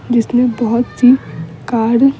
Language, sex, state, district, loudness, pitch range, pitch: Hindi, female, Bihar, Patna, -13 LUFS, 225-245 Hz, 235 Hz